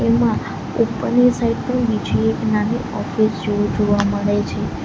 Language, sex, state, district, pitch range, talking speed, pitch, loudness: Gujarati, female, Gujarat, Valsad, 205-230 Hz, 150 wpm, 210 Hz, -19 LUFS